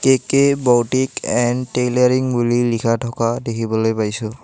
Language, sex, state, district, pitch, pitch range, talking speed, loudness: Assamese, male, Assam, Kamrup Metropolitan, 120 Hz, 115-130 Hz, 120 wpm, -18 LUFS